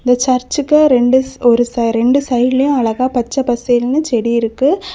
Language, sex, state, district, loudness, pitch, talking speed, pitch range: Tamil, female, Tamil Nadu, Kanyakumari, -14 LUFS, 250 Hz, 135 wpm, 240-275 Hz